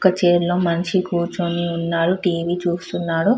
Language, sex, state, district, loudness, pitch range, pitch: Telugu, female, Andhra Pradesh, Krishna, -20 LUFS, 170-180 Hz, 175 Hz